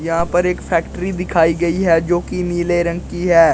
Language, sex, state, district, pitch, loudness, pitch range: Hindi, male, Uttar Pradesh, Shamli, 175 Hz, -17 LUFS, 170-180 Hz